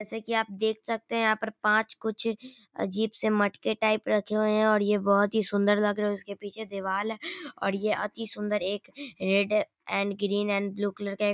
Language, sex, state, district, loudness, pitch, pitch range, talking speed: Hindi, male, Bihar, Darbhanga, -28 LUFS, 210 Hz, 205-220 Hz, 235 wpm